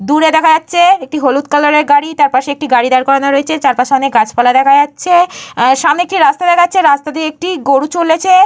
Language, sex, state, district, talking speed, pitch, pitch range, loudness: Bengali, female, Jharkhand, Jamtara, 215 wpm, 300 Hz, 275-350 Hz, -11 LUFS